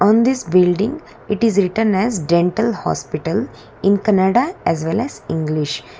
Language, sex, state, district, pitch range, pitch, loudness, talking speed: English, female, Karnataka, Bangalore, 175-225 Hz, 200 Hz, -18 LUFS, 150 wpm